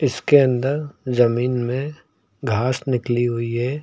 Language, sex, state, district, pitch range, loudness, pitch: Hindi, male, Uttar Pradesh, Lucknow, 120-140 Hz, -20 LUFS, 125 Hz